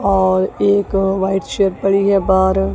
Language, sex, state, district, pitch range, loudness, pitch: Hindi, female, Punjab, Kapurthala, 190-200 Hz, -15 LUFS, 195 Hz